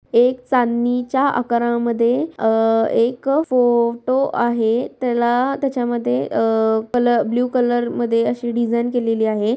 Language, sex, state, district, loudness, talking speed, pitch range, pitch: Marathi, female, Maharashtra, Aurangabad, -18 LUFS, 115 wpm, 230-250 Hz, 240 Hz